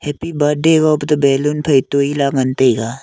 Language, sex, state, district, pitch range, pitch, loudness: Wancho, male, Arunachal Pradesh, Longding, 135-150 Hz, 145 Hz, -15 LUFS